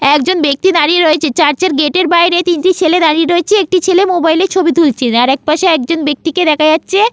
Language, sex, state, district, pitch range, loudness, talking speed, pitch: Bengali, female, West Bengal, Malda, 305-365 Hz, -11 LUFS, 195 wpm, 330 Hz